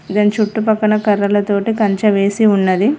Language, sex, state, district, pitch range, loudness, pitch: Telugu, female, Telangana, Mahabubabad, 200-215 Hz, -14 LUFS, 210 Hz